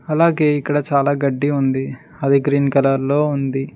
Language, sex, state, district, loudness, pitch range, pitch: Telugu, male, Telangana, Mahabubabad, -17 LUFS, 135-145 Hz, 140 Hz